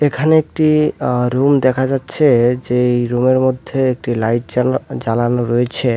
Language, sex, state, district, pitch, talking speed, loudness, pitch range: Bengali, male, West Bengal, Alipurduar, 125 Hz, 140 wpm, -15 LUFS, 120-135 Hz